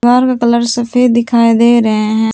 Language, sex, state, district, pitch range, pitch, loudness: Hindi, female, Jharkhand, Palamu, 230-240 Hz, 235 Hz, -11 LUFS